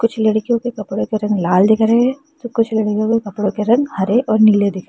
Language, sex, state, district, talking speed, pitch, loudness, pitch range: Hindi, female, Uttar Pradesh, Lalitpur, 270 wpm, 220 Hz, -16 LUFS, 210-235 Hz